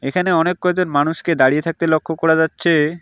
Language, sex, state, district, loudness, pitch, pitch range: Bengali, male, West Bengal, Alipurduar, -17 LUFS, 165 Hz, 155-170 Hz